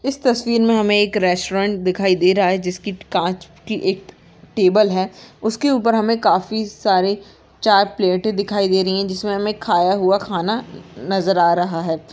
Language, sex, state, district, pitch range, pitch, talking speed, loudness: Hindi, female, Maharashtra, Aurangabad, 185-215 Hz, 195 Hz, 175 wpm, -18 LUFS